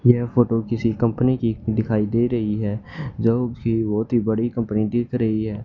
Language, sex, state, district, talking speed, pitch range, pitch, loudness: Hindi, male, Haryana, Charkhi Dadri, 190 wpm, 110-120 Hz, 115 Hz, -22 LUFS